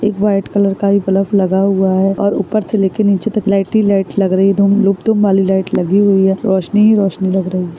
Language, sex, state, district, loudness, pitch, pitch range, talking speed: Hindi, female, Chhattisgarh, Sarguja, -13 LUFS, 195 Hz, 190-205 Hz, 260 wpm